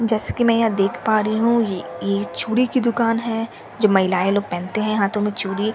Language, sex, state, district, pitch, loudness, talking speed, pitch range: Hindi, female, Bihar, Katihar, 215 Hz, -20 LUFS, 260 wpm, 195-230 Hz